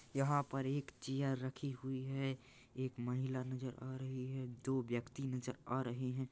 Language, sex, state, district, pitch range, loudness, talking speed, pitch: Hindi, male, Chhattisgarh, Rajnandgaon, 125-135 Hz, -42 LUFS, 180 wpm, 130 Hz